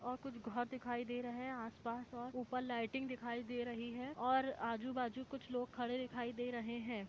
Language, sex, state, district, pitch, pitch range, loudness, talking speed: Hindi, female, Jharkhand, Jamtara, 245 Hz, 240-255 Hz, -43 LUFS, 230 wpm